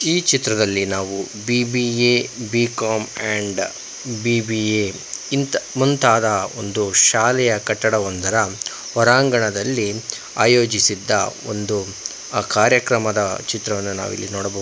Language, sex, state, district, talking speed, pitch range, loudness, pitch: Kannada, male, Karnataka, Bangalore, 80 wpm, 100-120 Hz, -19 LUFS, 110 Hz